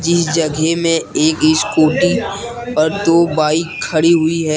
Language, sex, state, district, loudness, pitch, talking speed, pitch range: Hindi, male, Jharkhand, Deoghar, -14 LUFS, 165 Hz, 145 wpm, 155-170 Hz